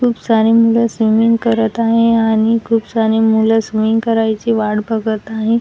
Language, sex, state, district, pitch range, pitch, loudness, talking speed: Marathi, female, Maharashtra, Washim, 220-230 Hz, 225 Hz, -14 LUFS, 160 wpm